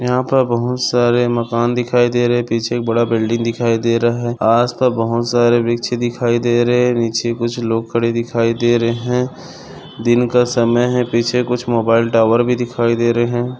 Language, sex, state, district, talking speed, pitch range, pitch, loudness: Hindi, male, Maharashtra, Sindhudurg, 205 wpm, 115-120 Hz, 120 Hz, -16 LUFS